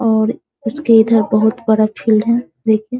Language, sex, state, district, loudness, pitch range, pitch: Hindi, female, Bihar, Sitamarhi, -15 LUFS, 220-235 Hz, 225 Hz